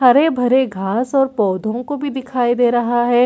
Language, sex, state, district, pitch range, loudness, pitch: Hindi, female, Chhattisgarh, Bilaspur, 240-265 Hz, -17 LUFS, 245 Hz